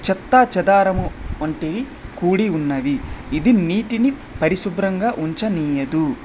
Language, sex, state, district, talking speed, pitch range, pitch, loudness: Telugu, male, Andhra Pradesh, Srikakulam, 85 wpm, 160-230 Hz, 190 Hz, -19 LUFS